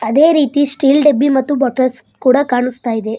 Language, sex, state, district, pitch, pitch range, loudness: Kannada, male, Karnataka, Bidar, 270 Hz, 250-285 Hz, -13 LUFS